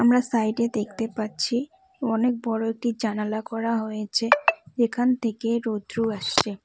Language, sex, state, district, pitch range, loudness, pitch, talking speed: Bengali, female, West Bengal, Cooch Behar, 220-240 Hz, -25 LUFS, 225 Hz, 125 wpm